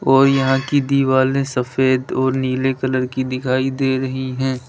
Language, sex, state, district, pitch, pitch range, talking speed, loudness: Hindi, male, Uttar Pradesh, Lalitpur, 130 Hz, 130-135 Hz, 165 wpm, -18 LUFS